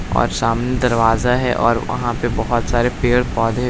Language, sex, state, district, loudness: Hindi, female, Maharashtra, Solapur, -18 LUFS